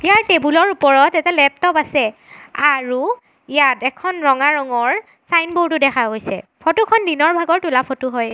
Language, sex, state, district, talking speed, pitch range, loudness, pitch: Assamese, female, Assam, Sonitpur, 160 wpm, 275-350 Hz, -16 LUFS, 305 Hz